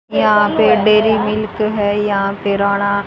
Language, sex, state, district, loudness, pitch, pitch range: Hindi, female, Haryana, Rohtak, -14 LUFS, 210 Hz, 200-215 Hz